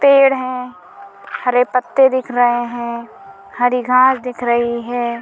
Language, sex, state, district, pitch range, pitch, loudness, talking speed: Hindi, female, Bihar, Bhagalpur, 240-255 Hz, 245 Hz, -16 LUFS, 140 wpm